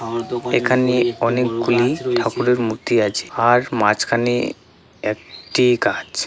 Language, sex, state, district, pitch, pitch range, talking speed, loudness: Bengali, male, West Bengal, Paschim Medinipur, 120 Hz, 115-125 Hz, 95 wpm, -19 LUFS